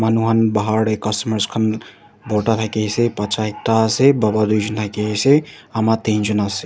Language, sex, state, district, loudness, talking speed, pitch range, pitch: Nagamese, male, Nagaland, Dimapur, -18 LUFS, 170 wpm, 105-115 Hz, 110 Hz